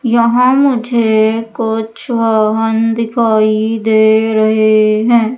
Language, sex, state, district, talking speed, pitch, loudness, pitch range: Hindi, female, Madhya Pradesh, Umaria, 90 wpm, 225 Hz, -12 LUFS, 220-235 Hz